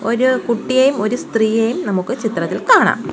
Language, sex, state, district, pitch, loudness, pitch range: Malayalam, female, Kerala, Kollam, 230 Hz, -16 LUFS, 220-255 Hz